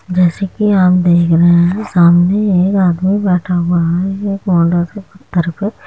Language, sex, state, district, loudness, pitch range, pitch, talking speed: Hindi, female, Uttar Pradesh, Muzaffarnagar, -13 LUFS, 175-195 Hz, 180 Hz, 185 wpm